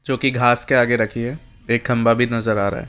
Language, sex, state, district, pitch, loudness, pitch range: Hindi, male, Rajasthan, Jaipur, 120 Hz, -18 LUFS, 115-125 Hz